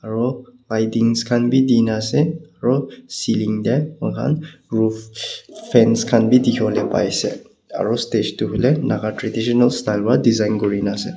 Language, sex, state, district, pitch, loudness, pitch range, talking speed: Nagamese, male, Nagaland, Kohima, 115 Hz, -19 LUFS, 110-130 Hz, 165 wpm